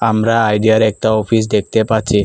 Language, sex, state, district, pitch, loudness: Bengali, male, Assam, Kamrup Metropolitan, 110 Hz, -14 LUFS